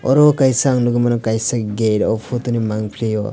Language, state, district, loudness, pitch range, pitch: Kokborok, Tripura, West Tripura, -17 LUFS, 110-125 Hz, 120 Hz